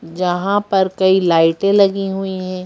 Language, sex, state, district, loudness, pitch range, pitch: Hindi, female, Madhya Pradesh, Bhopal, -16 LUFS, 180-195 Hz, 190 Hz